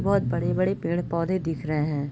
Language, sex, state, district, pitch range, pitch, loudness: Hindi, female, Bihar, Sitamarhi, 145-170 Hz, 155 Hz, -26 LUFS